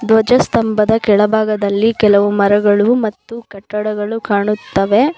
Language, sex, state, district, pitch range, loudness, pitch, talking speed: Kannada, female, Karnataka, Bangalore, 205-225 Hz, -14 LUFS, 210 Hz, 80 wpm